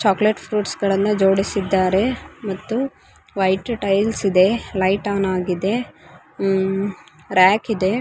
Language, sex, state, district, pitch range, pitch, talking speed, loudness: Kannada, female, Karnataka, Dharwad, 190-215 Hz, 195 Hz, 105 wpm, -19 LUFS